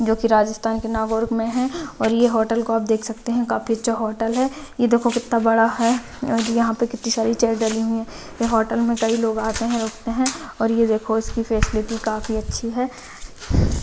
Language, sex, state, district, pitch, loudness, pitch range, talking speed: Hindi, female, Rajasthan, Nagaur, 230 Hz, -21 LUFS, 225-235 Hz, 210 wpm